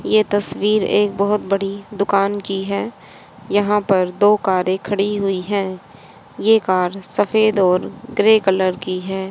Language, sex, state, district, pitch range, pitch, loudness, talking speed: Hindi, female, Haryana, Jhajjar, 190-205 Hz, 200 Hz, -18 LUFS, 150 wpm